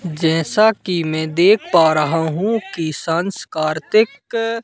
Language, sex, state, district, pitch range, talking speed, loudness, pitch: Hindi, male, Madhya Pradesh, Katni, 160-215 Hz, 130 wpm, -17 LUFS, 170 Hz